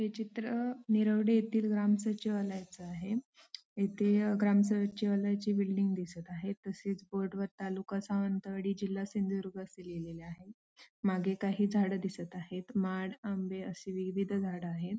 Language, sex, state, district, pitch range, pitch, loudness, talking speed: Marathi, female, Maharashtra, Sindhudurg, 190-210 Hz, 195 Hz, -34 LUFS, 125 wpm